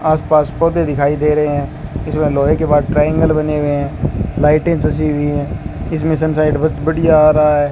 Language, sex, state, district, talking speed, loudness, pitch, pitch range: Hindi, male, Rajasthan, Bikaner, 200 wpm, -15 LUFS, 150 Hz, 145-155 Hz